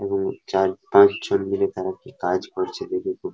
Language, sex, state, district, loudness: Bengali, male, West Bengal, Paschim Medinipur, -22 LUFS